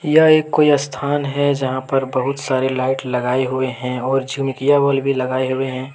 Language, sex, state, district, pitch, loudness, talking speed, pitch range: Hindi, male, Jharkhand, Deoghar, 135 Hz, -18 LUFS, 190 wpm, 130-140 Hz